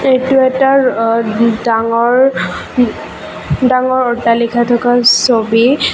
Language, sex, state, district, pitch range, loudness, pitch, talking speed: Assamese, female, Assam, Kamrup Metropolitan, 230-255 Hz, -12 LUFS, 240 Hz, 80 wpm